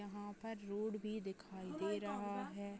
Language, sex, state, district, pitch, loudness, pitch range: Hindi, female, Uttarakhand, Uttarkashi, 205 Hz, -45 LUFS, 200-210 Hz